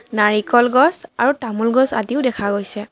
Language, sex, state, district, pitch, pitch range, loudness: Assamese, female, Assam, Kamrup Metropolitan, 235 Hz, 210-260 Hz, -17 LUFS